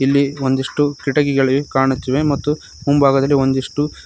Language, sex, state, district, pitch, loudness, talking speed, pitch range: Kannada, male, Karnataka, Koppal, 140 Hz, -17 LUFS, 105 wpm, 135-145 Hz